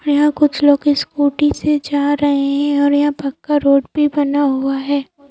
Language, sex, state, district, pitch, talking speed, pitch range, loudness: Hindi, female, Madhya Pradesh, Bhopal, 285 Hz, 190 wpm, 280-295 Hz, -16 LUFS